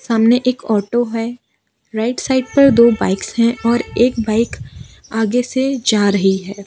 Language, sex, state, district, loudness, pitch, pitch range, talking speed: Hindi, female, Gujarat, Valsad, -16 LUFS, 235 Hz, 220-245 Hz, 160 wpm